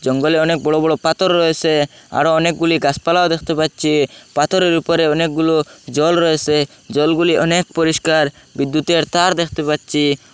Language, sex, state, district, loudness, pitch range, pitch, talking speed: Bengali, male, Assam, Hailakandi, -16 LUFS, 150-165 Hz, 160 Hz, 135 wpm